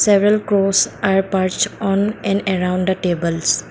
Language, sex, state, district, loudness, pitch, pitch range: English, female, Assam, Kamrup Metropolitan, -17 LUFS, 195 Hz, 185-200 Hz